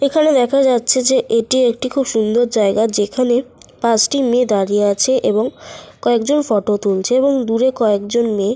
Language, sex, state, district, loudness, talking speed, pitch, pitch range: Bengali, female, Jharkhand, Sahebganj, -15 LUFS, 170 wpm, 240 Hz, 215-260 Hz